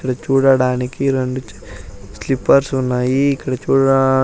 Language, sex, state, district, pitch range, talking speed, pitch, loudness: Telugu, male, Andhra Pradesh, Sri Satya Sai, 125-135 Hz, 115 wpm, 130 Hz, -16 LUFS